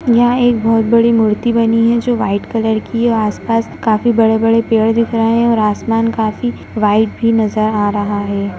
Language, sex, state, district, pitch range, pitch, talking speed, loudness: Hindi, female, Bihar, Jahanabad, 215-230 Hz, 225 Hz, 195 wpm, -14 LUFS